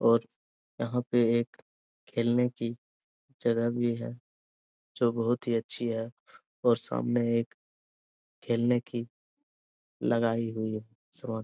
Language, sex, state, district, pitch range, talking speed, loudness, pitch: Hindi, male, Bihar, Jahanabad, 115-120 Hz, 120 wpm, -30 LUFS, 115 Hz